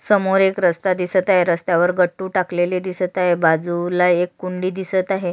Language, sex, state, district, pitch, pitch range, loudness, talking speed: Marathi, female, Maharashtra, Sindhudurg, 180 Hz, 175-185 Hz, -18 LUFS, 170 wpm